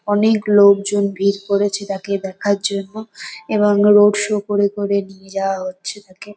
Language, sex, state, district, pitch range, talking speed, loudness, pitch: Bengali, female, West Bengal, North 24 Parganas, 195-205 Hz, 150 wpm, -17 LUFS, 200 Hz